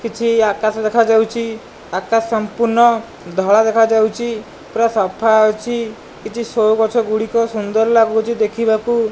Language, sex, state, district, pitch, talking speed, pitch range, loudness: Odia, male, Odisha, Malkangiri, 225 Hz, 110 wpm, 215-230 Hz, -16 LUFS